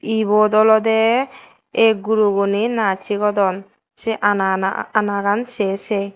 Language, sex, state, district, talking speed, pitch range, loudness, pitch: Chakma, female, Tripura, West Tripura, 105 wpm, 200-220 Hz, -18 LUFS, 210 Hz